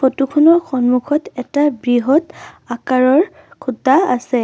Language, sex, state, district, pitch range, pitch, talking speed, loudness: Assamese, female, Assam, Sonitpur, 250-300 Hz, 265 Hz, 110 wpm, -15 LUFS